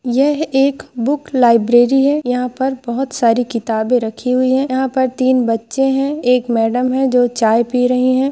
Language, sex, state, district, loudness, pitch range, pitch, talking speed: Hindi, female, Maharashtra, Nagpur, -15 LUFS, 240-265 Hz, 255 Hz, 185 wpm